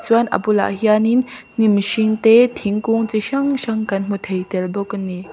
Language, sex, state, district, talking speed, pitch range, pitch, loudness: Mizo, female, Mizoram, Aizawl, 200 wpm, 200-230 Hz, 215 Hz, -18 LUFS